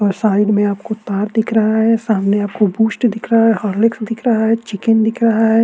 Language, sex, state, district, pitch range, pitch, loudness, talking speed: Hindi, male, Uttarakhand, Tehri Garhwal, 205-225 Hz, 220 Hz, -15 LUFS, 245 wpm